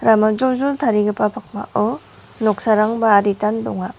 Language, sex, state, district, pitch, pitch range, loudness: Garo, female, Meghalaya, West Garo Hills, 215 Hz, 210-225 Hz, -18 LUFS